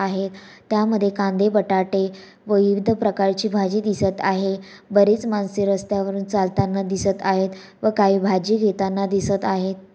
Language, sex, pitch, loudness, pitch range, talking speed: Marathi, female, 195 Hz, -21 LUFS, 195-205 Hz, 135 wpm